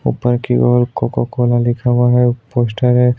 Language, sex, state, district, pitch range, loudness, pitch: Hindi, male, Maharashtra, Aurangabad, 120-125 Hz, -15 LUFS, 120 Hz